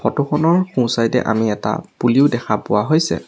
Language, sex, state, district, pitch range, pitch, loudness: Assamese, male, Assam, Sonitpur, 110-145 Hz, 120 Hz, -17 LUFS